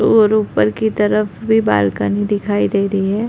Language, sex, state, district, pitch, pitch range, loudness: Hindi, female, Uttar Pradesh, Deoria, 205 Hz, 195-215 Hz, -16 LUFS